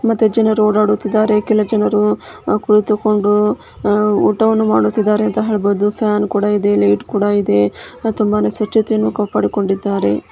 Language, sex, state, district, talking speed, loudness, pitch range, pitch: Kannada, female, Karnataka, Dharwad, 135 wpm, -15 LUFS, 205-215 Hz, 210 Hz